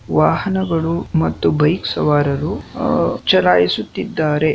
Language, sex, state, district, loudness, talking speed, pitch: Kannada, male, Karnataka, Shimoga, -17 LUFS, 80 wpm, 150 Hz